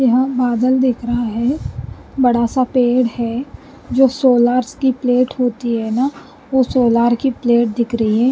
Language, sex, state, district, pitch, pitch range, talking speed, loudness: Hindi, female, Punjab, Pathankot, 250 Hz, 235-260 Hz, 165 wpm, -16 LUFS